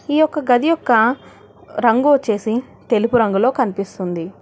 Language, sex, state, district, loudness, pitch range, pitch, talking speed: Telugu, female, Telangana, Hyderabad, -17 LUFS, 215-270 Hz, 235 Hz, 120 wpm